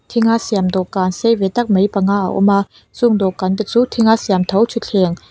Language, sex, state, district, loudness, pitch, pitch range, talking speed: Mizo, female, Mizoram, Aizawl, -15 LUFS, 200 Hz, 190-230 Hz, 235 wpm